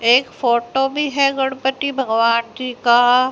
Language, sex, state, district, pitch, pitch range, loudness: Hindi, female, Haryana, Jhajjar, 255 Hz, 235-270 Hz, -17 LUFS